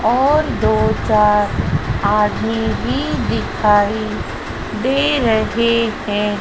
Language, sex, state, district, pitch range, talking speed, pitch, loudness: Hindi, female, Madhya Pradesh, Dhar, 205-235 Hz, 85 wpm, 215 Hz, -17 LUFS